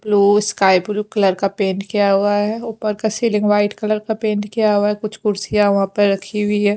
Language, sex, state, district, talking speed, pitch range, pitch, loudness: Hindi, female, Haryana, Jhajjar, 230 wpm, 200-215 Hz, 210 Hz, -17 LUFS